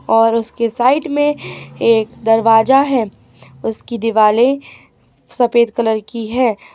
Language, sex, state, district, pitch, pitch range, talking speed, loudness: Hindi, female, Uttar Pradesh, Ghazipur, 230 Hz, 220-250 Hz, 125 wpm, -15 LUFS